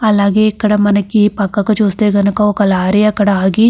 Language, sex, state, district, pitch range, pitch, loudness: Telugu, female, Andhra Pradesh, Krishna, 200-215 Hz, 205 Hz, -12 LUFS